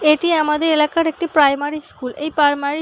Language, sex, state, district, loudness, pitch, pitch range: Bengali, female, West Bengal, North 24 Parganas, -17 LUFS, 305 Hz, 290-315 Hz